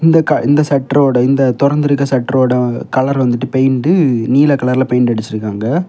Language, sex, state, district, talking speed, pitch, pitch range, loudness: Tamil, male, Tamil Nadu, Kanyakumari, 155 wpm, 130 Hz, 125-145 Hz, -13 LUFS